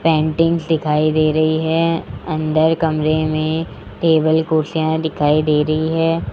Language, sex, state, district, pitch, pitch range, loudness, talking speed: Hindi, male, Rajasthan, Jaipur, 155 Hz, 155-160 Hz, -17 LUFS, 135 wpm